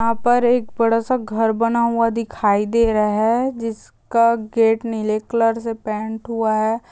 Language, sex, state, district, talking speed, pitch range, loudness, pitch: Hindi, female, Chhattisgarh, Bilaspur, 175 wpm, 220-230 Hz, -19 LUFS, 230 Hz